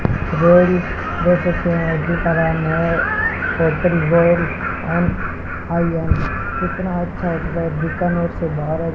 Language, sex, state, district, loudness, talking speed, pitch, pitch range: Hindi, male, Rajasthan, Bikaner, -18 LUFS, 35 wpm, 170 Hz, 160-175 Hz